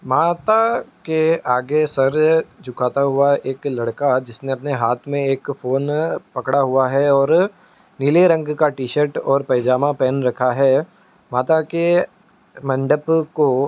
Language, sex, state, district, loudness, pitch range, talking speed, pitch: Hindi, male, Uttar Pradesh, Muzaffarnagar, -18 LUFS, 130-160 Hz, 140 wpm, 140 Hz